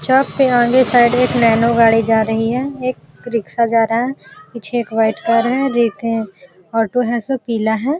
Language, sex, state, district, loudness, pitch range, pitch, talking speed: Hindi, female, Uttar Pradesh, Jalaun, -16 LUFS, 225-255 Hz, 235 Hz, 175 wpm